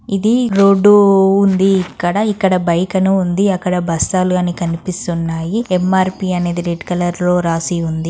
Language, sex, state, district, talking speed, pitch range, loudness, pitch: Telugu, female, Andhra Pradesh, Guntur, 135 wpm, 175-195 Hz, -14 LUFS, 185 Hz